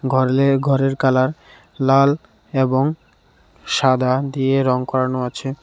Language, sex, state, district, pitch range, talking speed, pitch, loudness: Bengali, male, Tripura, West Tripura, 130-135 Hz, 95 wpm, 135 Hz, -18 LUFS